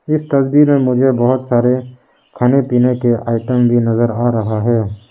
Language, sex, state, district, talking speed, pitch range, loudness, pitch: Hindi, male, Arunachal Pradesh, Lower Dibang Valley, 175 wpm, 120-130 Hz, -14 LUFS, 125 Hz